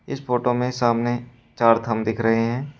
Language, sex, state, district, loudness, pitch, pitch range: Hindi, male, Uttar Pradesh, Shamli, -22 LUFS, 120 Hz, 115-125 Hz